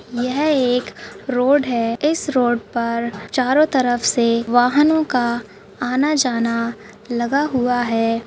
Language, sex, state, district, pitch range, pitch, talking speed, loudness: Hindi, female, Rajasthan, Churu, 230-265 Hz, 245 Hz, 115 wpm, -18 LUFS